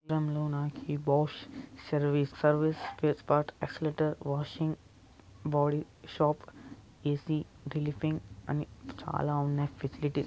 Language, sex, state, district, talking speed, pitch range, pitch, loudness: Telugu, male, Andhra Pradesh, Anantapur, 105 wpm, 145-150 Hz, 150 Hz, -32 LUFS